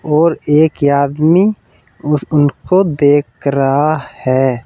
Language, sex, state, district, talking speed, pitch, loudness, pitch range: Hindi, male, Uttar Pradesh, Saharanpur, 105 wpm, 145 Hz, -13 LUFS, 140-155 Hz